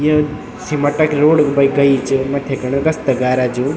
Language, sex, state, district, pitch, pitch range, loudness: Garhwali, male, Uttarakhand, Tehri Garhwal, 140 Hz, 135-150 Hz, -15 LUFS